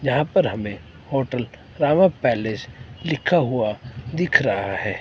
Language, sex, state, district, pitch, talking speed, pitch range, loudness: Hindi, male, Himachal Pradesh, Shimla, 125 Hz, 130 wpm, 115-150 Hz, -21 LUFS